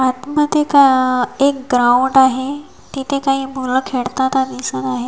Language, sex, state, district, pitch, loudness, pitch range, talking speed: Marathi, female, Maharashtra, Washim, 265 Hz, -15 LUFS, 255-275 Hz, 130 wpm